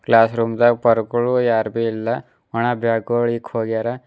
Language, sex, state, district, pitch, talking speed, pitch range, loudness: Kannada, male, Karnataka, Bidar, 115 Hz, 145 wpm, 115-120 Hz, -19 LUFS